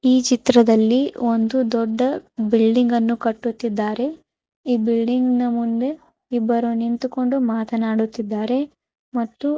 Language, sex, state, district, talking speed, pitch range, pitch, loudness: Kannada, female, Karnataka, Raichur, 95 wpm, 230-255 Hz, 235 Hz, -20 LUFS